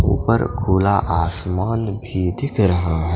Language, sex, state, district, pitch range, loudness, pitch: Hindi, male, Punjab, Fazilka, 90-110 Hz, -19 LUFS, 95 Hz